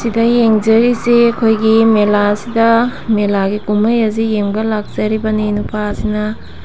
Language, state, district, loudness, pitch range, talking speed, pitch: Manipuri, Manipur, Imphal West, -14 LUFS, 210-230 Hz, 90 wpm, 220 Hz